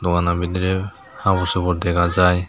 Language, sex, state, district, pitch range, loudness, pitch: Chakma, male, Tripura, Unakoti, 85-95 Hz, -19 LUFS, 90 Hz